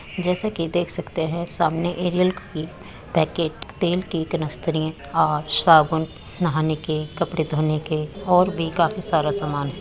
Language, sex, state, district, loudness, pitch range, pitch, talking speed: Hindi, female, Uttar Pradesh, Muzaffarnagar, -22 LUFS, 155-175 Hz, 165 Hz, 155 wpm